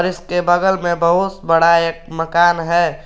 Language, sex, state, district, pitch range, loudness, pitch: Hindi, male, Jharkhand, Garhwa, 165-175 Hz, -15 LUFS, 170 Hz